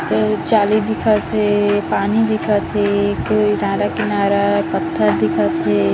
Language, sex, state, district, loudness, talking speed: Hindi, female, Chhattisgarh, Kabirdham, -17 LUFS, 120 wpm